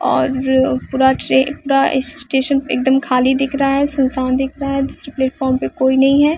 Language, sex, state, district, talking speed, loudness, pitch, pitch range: Hindi, female, Bihar, West Champaran, 200 wpm, -16 LUFS, 265 Hz, 260-275 Hz